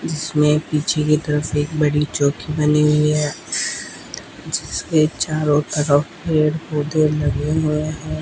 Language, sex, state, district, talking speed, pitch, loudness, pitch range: Hindi, female, Rajasthan, Bikaner, 125 wpm, 150 Hz, -19 LUFS, 150-155 Hz